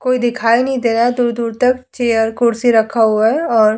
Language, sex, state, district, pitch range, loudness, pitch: Hindi, female, Uttar Pradesh, Hamirpur, 225-250 Hz, -15 LUFS, 235 Hz